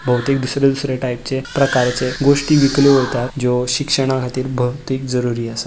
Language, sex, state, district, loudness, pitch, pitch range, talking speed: Konkani, male, Goa, North and South Goa, -17 LUFS, 130 Hz, 125-140 Hz, 150 wpm